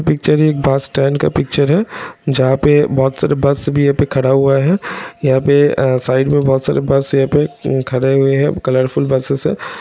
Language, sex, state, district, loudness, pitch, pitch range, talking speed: Hindi, male, Bihar, Bhagalpur, -14 LUFS, 140 Hz, 135-145 Hz, 210 wpm